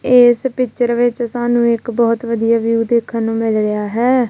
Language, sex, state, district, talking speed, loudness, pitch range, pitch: Punjabi, female, Punjab, Kapurthala, 180 wpm, -15 LUFS, 230-240 Hz, 235 Hz